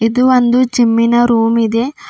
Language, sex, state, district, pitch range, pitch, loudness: Kannada, female, Karnataka, Bidar, 230-255 Hz, 240 Hz, -12 LUFS